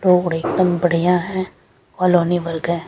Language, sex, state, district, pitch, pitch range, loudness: Hindi, female, Chandigarh, Chandigarh, 175 Hz, 170-180 Hz, -18 LUFS